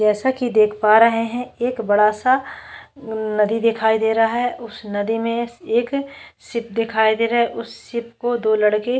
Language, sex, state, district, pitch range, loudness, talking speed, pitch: Hindi, female, Maharashtra, Chandrapur, 220-240 Hz, -19 LUFS, 195 wpm, 230 Hz